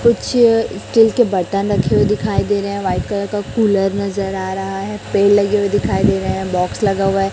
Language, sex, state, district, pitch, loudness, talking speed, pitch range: Hindi, male, Chhattisgarh, Raipur, 200 Hz, -16 LUFS, 230 wpm, 195-210 Hz